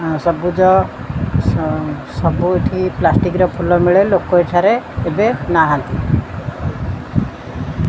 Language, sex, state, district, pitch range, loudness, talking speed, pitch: Odia, female, Odisha, Khordha, 175-185 Hz, -16 LUFS, 100 wpm, 180 Hz